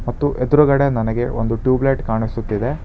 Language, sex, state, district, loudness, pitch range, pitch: Kannada, male, Karnataka, Bangalore, -18 LUFS, 115-135 Hz, 120 Hz